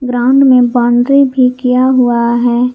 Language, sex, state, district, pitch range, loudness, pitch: Hindi, female, Jharkhand, Garhwa, 240-260 Hz, -10 LUFS, 250 Hz